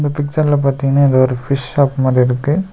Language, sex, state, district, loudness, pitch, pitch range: Tamil, male, Tamil Nadu, Nilgiris, -14 LUFS, 140 Hz, 130-145 Hz